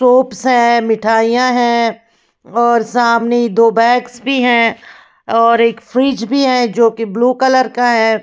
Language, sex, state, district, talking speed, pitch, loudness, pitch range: Hindi, female, Bihar, West Champaran, 155 wpm, 235 Hz, -13 LUFS, 230-250 Hz